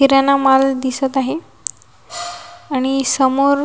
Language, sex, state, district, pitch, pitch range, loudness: Marathi, female, Maharashtra, Washim, 265 Hz, 175-275 Hz, -17 LUFS